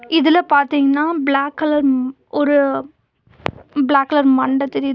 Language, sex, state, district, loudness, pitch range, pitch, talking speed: Tamil, female, Tamil Nadu, Nilgiris, -16 LUFS, 260-290 Hz, 280 Hz, 120 wpm